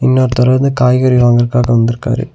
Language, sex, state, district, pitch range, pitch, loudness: Tamil, male, Tamil Nadu, Nilgiris, 120-130 Hz, 125 Hz, -11 LUFS